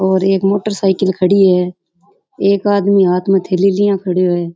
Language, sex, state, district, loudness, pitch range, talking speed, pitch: Rajasthani, female, Rajasthan, Churu, -14 LUFS, 180-200 Hz, 185 wpm, 195 Hz